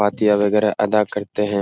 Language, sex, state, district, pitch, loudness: Hindi, male, Bihar, Jahanabad, 105 Hz, -18 LUFS